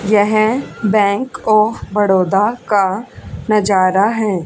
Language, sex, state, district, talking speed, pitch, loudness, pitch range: Hindi, female, Haryana, Charkhi Dadri, 95 wpm, 205 Hz, -15 LUFS, 195-215 Hz